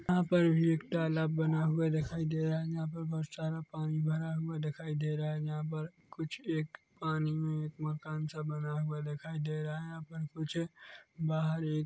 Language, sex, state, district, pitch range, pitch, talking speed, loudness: Hindi, male, Chhattisgarh, Korba, 155-160 Hz, 160 Hz, 220 wpm, -35 LUFS